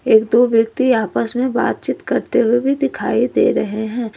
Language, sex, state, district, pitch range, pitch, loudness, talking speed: Hindi, female, Jharkhand, Ranchi, 225-255 Hz, 235 Hz, -17 LUFS, 185 wpm